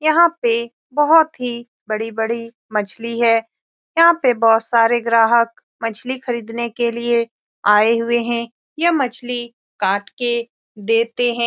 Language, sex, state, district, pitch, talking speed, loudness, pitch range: Hindi, female, Bihar, Saran, 235 Hz, 135 wpm, -18 LUFS, 230-245 Hz